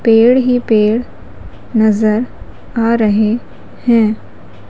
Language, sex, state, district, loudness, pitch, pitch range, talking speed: Hindi, female, Madhya Pradesh, Umaria, -13 LUFS, 220 Hz, 215-235 Hz, 90 wpm